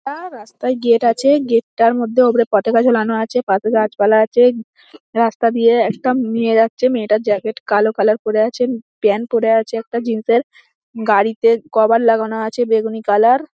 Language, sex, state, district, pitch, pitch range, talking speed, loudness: Bengali, female, West Bengal, Dakshin Dinajpur, 230 Hz, 220-240 Hz, 175 wpm, -15 LUFS